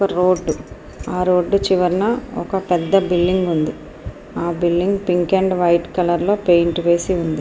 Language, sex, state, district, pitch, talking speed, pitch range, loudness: Telugu, female, Andhra Pradesh, Srikakulam, 180 Hz, 145 wpm, 170-190 Hz, -18 LUFS